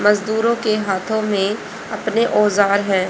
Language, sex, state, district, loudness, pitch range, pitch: Hindi, female, Haryana, Rohtak, -18 LUFS, 200-220 Hz, 210 Hz